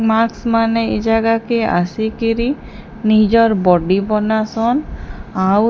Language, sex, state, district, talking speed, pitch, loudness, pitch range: Odia, female, Odisha, Sambalpur, 115 wpm, 225 Hz, -16 LUFS, 215-230 Hz